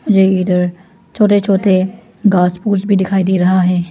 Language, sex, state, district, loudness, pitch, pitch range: Hindi, female, Arunachal Pradesh, Lower Dibang Valley, -13 LUFS, 190 Hz, 180-200 Hz